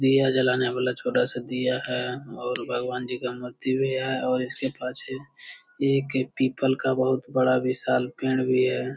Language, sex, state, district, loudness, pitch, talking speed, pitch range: Hindi, male, Bihar, Jamui, -26 LUFS, 130 Hz, 175 wpm, 125-130 Hz